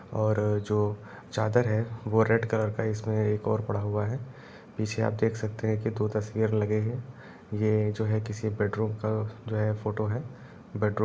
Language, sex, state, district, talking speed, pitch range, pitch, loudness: Hindi, male, Uttar Pradesh, Jalaun, 195 wpm, 105-110 Hz, 110 Hz, -29 LUFS